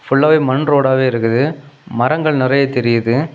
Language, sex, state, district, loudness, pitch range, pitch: Tamil, male, Tamil Nadu, Kanyakumari, -14 LUFS, 125-145 Hz, 135 Hz